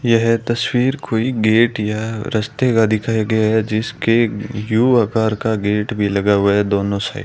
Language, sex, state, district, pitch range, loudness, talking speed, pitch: Hindi, male, Rajasthan, Bikaner, 105-115 Hz, -17 LUFS, 180 wpm, 110 Hz